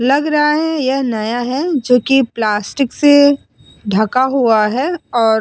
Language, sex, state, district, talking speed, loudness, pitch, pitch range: Hindi, female, Uttar Pradesh, Muzaffarnagar, 165 wpm, -14 LUFS, 265 Hz, 225-285 Hz